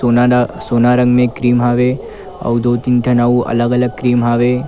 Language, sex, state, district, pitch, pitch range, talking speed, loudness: Chhattisgarhi, male, Chhattisgarh, Kabirdham, 120 Hz, 120-125 Hz, 205 wpm, -13 LUFS